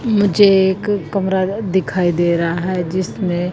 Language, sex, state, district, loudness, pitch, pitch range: Hindi, female, Haryana, Jhajjar, -16 LUFS, 190 Hz, 175-200 Hz